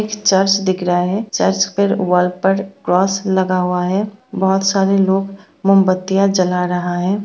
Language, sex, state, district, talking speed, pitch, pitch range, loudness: Hindi, female, Bihar, Bhagalpur, 165 wpm, 190 Hz, 185-195 Hz, -16 LUFS